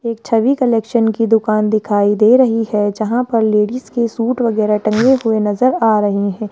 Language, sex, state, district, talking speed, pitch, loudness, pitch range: Hindi, male, Rajasthan, Jaipur, 195 wpm, 225 Hz, -15 LUFS, 215-235 Hz